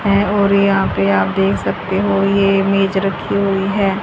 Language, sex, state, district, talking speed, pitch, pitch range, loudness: Hindi, female, Haryana, Charkhi Dadri, 195 wpm, 195 Hz, 180-200 Hz, -15 LUFS